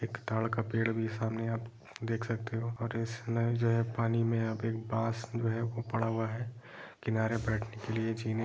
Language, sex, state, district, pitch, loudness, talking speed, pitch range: Hindi, male, Bihar, Jahanabad, 115 Hz, -34 LUFS, 225 wpm, 110-115 Hz